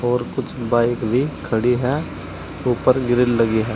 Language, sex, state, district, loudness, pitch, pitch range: Hindi, male, Uttar Pradesh, Saharanpur, -20 LUFS, 120 Hz, 110-125 Hz